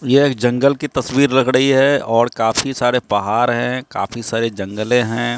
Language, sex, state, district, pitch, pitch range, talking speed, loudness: Hindi, male, Bihar, Katihar, 125 Hz, 115-135 Hz, 190 wpm, -16 LUFS